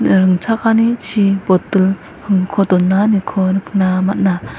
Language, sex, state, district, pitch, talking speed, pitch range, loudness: Garo, female, Meghalaya, West Garo Hills, 195 Hz, 80 wpm, 185-205 Hz, -15 LUFS